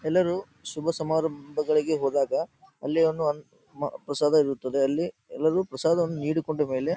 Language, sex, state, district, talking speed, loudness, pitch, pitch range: Kannada, male, Karnataka, Dharwad, 110 wpm, -27 LUFS, 155 Hz, 145-160 Hz